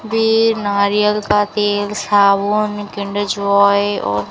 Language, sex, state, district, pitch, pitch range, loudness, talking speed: Hindi, female, Rajasthan, Bikaner, 205 Hz, 200-210 Hz, -15 LUFS, 110 wpm